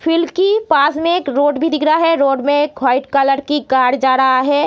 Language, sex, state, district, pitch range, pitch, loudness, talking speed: Hindi, female, Bihar, Jamui, 270-320 Hz, 290 Hz, -14 LUFS, 280 wpm